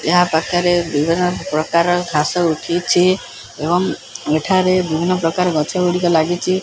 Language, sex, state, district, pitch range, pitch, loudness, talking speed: Odia, male, Odisha, Khordha, 160-180 Hz, 175 Hz, -17 LUFS, 115 wpm